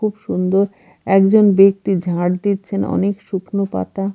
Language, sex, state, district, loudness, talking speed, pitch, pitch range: Bengali, female, Bihar, Katihar, -17 LUFS, 130 wpm, 195 Hz, 185-200 Hz